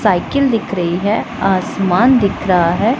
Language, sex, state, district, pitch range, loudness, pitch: Hindi, female, Punjab, Pathankot, 180-225 Hz, -15 LUFS, 195 Hz